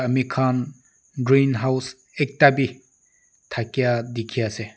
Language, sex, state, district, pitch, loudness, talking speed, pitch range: Nagamese, male, Nagaland, Dimapur, 130 Hz, -22 LUFS, 115 wpm, 120-135 Hz